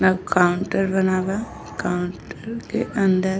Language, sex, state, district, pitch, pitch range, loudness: Bhojpuri, female, Uttar Pradesh, Deoria, 185 Hz, 180-195 Hz, -22 LUFS